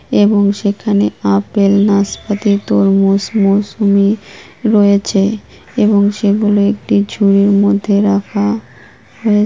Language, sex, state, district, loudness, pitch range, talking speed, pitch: Bengali, female, West Bengal, Kolkata, -13 LUFS, 200-210 Hz, 90 wpm, 200 Hz